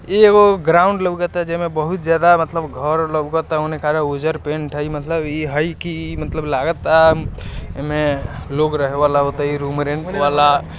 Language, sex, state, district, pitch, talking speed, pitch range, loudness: Hindi, male, Bihar, East Champaran, 155 Hz, 155 wpm, 145-165 Hz, -17 LUFS